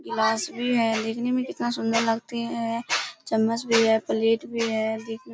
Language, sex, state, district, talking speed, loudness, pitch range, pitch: Hindi, female, Bihar, Kishanganj, 170 wpm, -25 LUFS, 225-235 Hz, 230 Hz